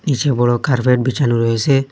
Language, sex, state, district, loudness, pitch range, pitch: Bengali, male, Assam, Hailakandi, -16 LUFS, 120-135 Hz, 125 Hz